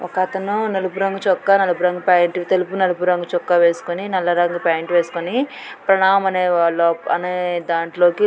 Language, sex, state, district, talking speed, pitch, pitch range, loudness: Telugu, female, Andhra Pradesh, Guntur, 140 wpm, 180 Hz, 175-190 Hz, -18 LUFS